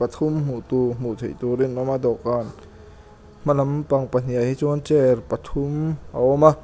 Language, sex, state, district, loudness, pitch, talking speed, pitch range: Mizo, male, Mizoram, Aizawl, -22 LUFS, 130 Hz, 180 wpm, 120-145 Hz